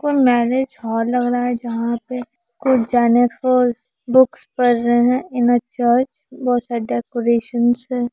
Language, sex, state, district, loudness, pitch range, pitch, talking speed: Hindi, female, Bihar, Araria, -18 LUFS, 235-255 Hz, 245 Hz, 155 wpm